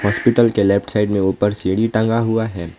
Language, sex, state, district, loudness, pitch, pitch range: Hindi, male, West Bengal, Alipurduar, -17 LUFS, 105 Hz, 100-115 Hz